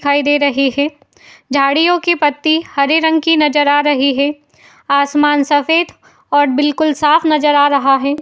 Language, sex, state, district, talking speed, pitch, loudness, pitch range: Hindi, female, Uttar Pradesh, Jalaun, 170 wpm, 290 Hz, -13 LUFS, 280-310 Hz